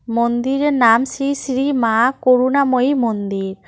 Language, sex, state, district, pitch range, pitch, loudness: Bengali, female, West Bengal, Cooch Behar, 230-270 Hz, 255 Hz, -16 LUFS